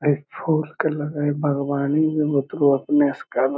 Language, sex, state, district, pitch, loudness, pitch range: Magahi, male, Bihar, Lakhisarai, 145 Hz, -21 LUFS, 140-150 Hz